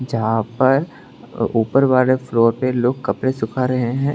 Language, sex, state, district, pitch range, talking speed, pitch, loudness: Hindi, male, Tripura, West Tripura, 115-130 Hz, 160 wpm, 130 Hz, -18 LUFS